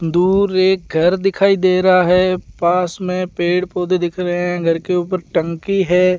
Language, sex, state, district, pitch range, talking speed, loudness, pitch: Hindi, male, Rajasthan, Bikaner, 175-185 Hz, 185 wpm, -16 LUFS, 180 Hz